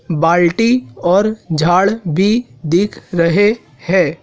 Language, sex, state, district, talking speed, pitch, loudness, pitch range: Hindi, male, Madhya Pradesh, Dhar, 100 wpm, 180 Hz, -15 LUFS, 170-210 Hz